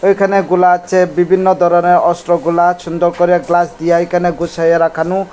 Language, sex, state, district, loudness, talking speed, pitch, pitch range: Bengali, male, Tripura, West Tripura, -12 LUFS, 170 wpm, 175 Hz, 170-180 Hz